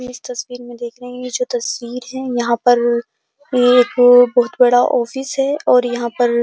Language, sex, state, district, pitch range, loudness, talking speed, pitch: Hindi, female, Uttar Pradesh, Jyotiba Phule Nagar, 240-250 Hz, -16 LUFS, 205 wpm, 245 Hz